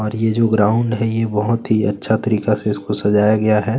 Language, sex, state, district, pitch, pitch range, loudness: Hindi, male, Chhattisgarh, Kabirdham, 110 Hz, 105-115 Hz, -17 LUFS